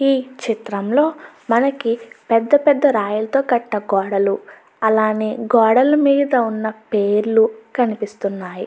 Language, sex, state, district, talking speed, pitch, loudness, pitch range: Telugu, female, Andhra Pradesh, Chittoor, 95 wpm, 225 Hz, -18 LUFS, 215-260 Hz